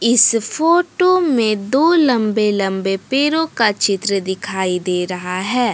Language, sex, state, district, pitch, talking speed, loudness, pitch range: Hindi, female, Jharkhand, Deoghar, 215 Hz, 135 wpm, -16 LUFS, 195-275 Hz